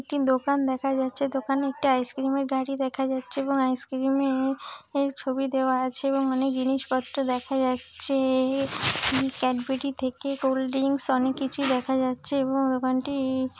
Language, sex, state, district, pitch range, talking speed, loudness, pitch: Bengali, female, West Bengal, Purulia, 260-275 Hz, 140 wpm, -26 LUFS, 265 Hz